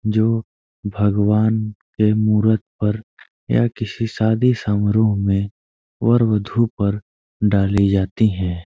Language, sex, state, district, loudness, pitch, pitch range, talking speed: Hindi, male, Uttar Pradesh, Ghazipur, -19 LUFS, 105 Hz, 100-110 Hz, 110 wpm